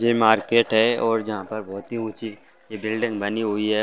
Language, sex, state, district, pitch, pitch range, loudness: Hindi, male, Chhattisgarh, Bastar, 110 Hz, 105-115 Hz, -22 LUFS